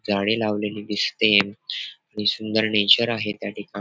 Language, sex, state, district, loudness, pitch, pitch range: Marathi, male, Maharashtra, Dhule, -22 LUFS, 105 Hz, 100-110 Hz